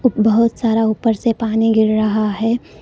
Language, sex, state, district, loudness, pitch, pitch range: Hindi, female, Karnataka, Koppal, -16 LUFS, 225 Hz, 220-230 Hz